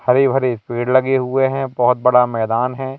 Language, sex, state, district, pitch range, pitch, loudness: Hindi, male, Madhya Pradesh, Katni, 125-135 Hz, 125 Hz, -17 LUFS